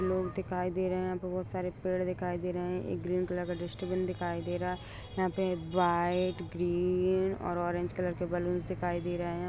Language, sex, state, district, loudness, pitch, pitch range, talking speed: Hindi, female, Bihar, Jahanabad, -33 LUFS, 180 Hz, 175-185 Hz, 210 wpm